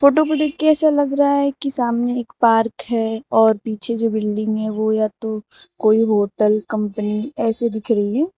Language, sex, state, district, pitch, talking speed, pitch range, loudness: Hindi, female, Uttar Pradesh, Lucknow, 225 Hz, 200 wpm, 215-275 Hz, -18 LUFS